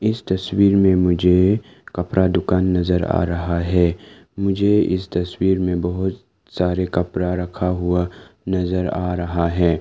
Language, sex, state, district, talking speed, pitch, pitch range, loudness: Hindi, male, Arunachal Pradesh, Lower Dibang Valley, 140 wpm, 90 Hz, 90-95 Hz, -19 LUFS